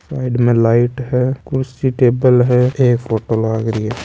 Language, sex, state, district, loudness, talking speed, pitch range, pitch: Marwari, male, Rajasthan, Nagaur, -15 LUFS, 180 wpm, 115-130 Hz, 125 Hz